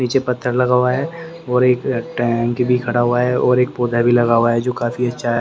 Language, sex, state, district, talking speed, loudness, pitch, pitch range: Hindi, male, Haryana, Rohtak, 255 wpm, -17 LUFS, 125 Hz, 120-125 Hz